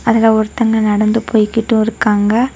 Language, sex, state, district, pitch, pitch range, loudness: Tamil, female, Tamil Nadu, Kanyakumari, 220 Hz, 215-225 Hz, -13 LUFS